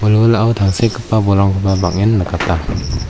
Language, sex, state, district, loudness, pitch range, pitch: Garo, male, Meghalaya, West Garo Hills, -15 LUFS, 95-110 Hz, 100 Hz